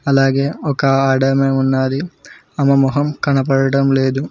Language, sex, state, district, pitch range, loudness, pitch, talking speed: Telugu, male, Telangana, Mahabubabad, 135-140 Hz, -15 LUFS, 135 Hz, 125 wpm